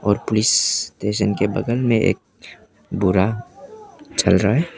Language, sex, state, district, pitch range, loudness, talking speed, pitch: Hindi, male, Arunachal Pradesh, Papum Pare, 100-120 Hz, -19 LUFS, 140 wpm, 110 Hz